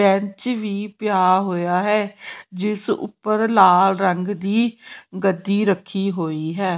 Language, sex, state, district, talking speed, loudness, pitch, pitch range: Punjabi, female, Punjab, Pathankot, 125 wpm, -20 LUFS, 195 Hz, 185-210 Hz